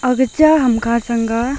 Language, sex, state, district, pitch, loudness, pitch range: Wancho, female, Arunachal Pradesh, Longding, 245 Hz, -15 LUFS, 235-265 Hz